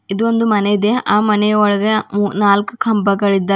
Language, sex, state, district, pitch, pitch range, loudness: Kannada, female, Karnataka, Bidar, 210 Hz, 200-215 Hz, -15 LUFS